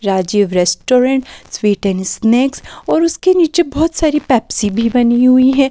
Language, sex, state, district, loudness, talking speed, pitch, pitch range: Hindi, female, Delhi, New Delhi, -13 LUFS, 155 wpm, 250 Hz, 205-290 Hz